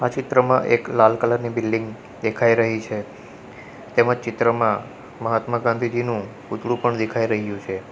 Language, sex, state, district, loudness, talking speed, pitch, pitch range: Gujarati, male, Gujarat, Valsad, -21 LUFS, 135 wpm, 115 Hz, 110-120 Hz